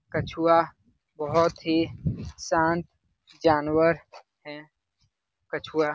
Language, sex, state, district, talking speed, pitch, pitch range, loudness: Hindi, male, Bihar, Lakhisarai, 80 wpm, 160 Hz, 150-165 Hz, -25 LUFS